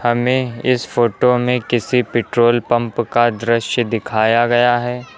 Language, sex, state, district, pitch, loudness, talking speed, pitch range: Hindi, male, Uttar Pradesh, Lucknow, 120 Hz, -16 LUFS, 140 wpm, 120-125 Hz